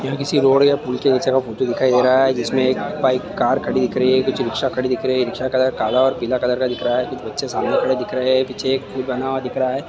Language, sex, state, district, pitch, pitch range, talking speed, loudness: Hindi, male, Bihar, Kishanganj, 130 Hz, 125-130 Hz, 335 wpm, -19 LUFS